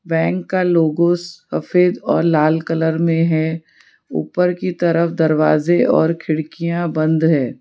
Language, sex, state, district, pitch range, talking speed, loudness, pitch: Hindi, female, Gujarat, Valsad, 160-175 Hz, 135 wpm, -17 LUFS, 165 Hz